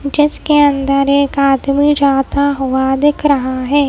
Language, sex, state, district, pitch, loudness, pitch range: Hindi, female, Madhya Pradesh, Bhopal, 280 Hz, -13 LUFS, 270-290 Hz